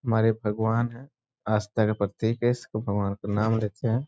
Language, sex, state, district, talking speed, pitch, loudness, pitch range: Hindi, male, Bihar, Sitamarhi, 190 wpm, 110 Hz, -27 LUFS, 105-120 Hz